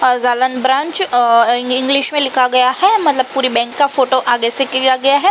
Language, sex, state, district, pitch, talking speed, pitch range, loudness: Hindi, female, Uttar Pradesh, Jalaun, 260 Hz, 225 wpm, 250-275 Hz, -12 LUFS